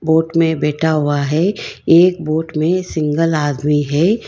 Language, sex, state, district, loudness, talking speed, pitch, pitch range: Hindi, female, Karnataka, Bangalore, -16 LUFS, 155 wpm, 160 Hz, 150-165 Hz